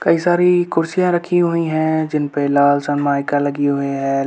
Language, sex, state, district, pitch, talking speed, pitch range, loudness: Hindi, male, Uttar Pradesh, Budaun, 150 Hz, 170 wpm, 145-170 Hz, -17 LUFS